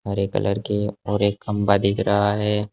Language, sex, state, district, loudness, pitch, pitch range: Hindi, male, Uttar Pradesh, Saharanpur, -22 LUFS, 105 Hz, 100-105 Hz